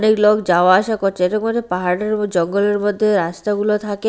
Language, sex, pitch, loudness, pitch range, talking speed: Bengali, female, 205 Hz, -17 LUFS, 185-215 Hz, 190 wpm